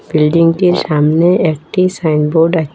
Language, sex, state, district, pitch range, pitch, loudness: Bengali, female, Assam, Hailakandi, 155-180 Hz, 165 Hz, -12 LUFS